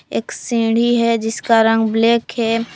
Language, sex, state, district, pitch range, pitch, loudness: Hindi, female, Jharkhand, Palamu, 225-230 Hz, 230 Hz, -16 LUFS